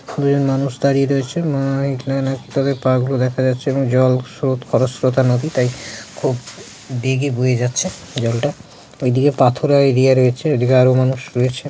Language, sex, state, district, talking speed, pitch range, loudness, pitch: Bengali, male, West Bengal, Jalpaiguri, 160 wpm, 125-140 Hz, -17 LUFS, 130 Hz